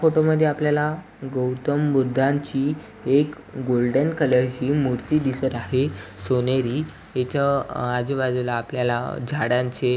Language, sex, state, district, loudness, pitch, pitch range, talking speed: Marathi, male, Maharashtra, Aurangabad, -23 LUFS, 135 Hz, 125-145 Hz, 100 wpm